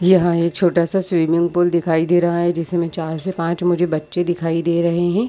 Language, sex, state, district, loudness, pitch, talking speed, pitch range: Hindi, female, Chhattisgarh, Bilaspur, -18 LUFS, 170 Hz, 225 wpm, 165-175 Hz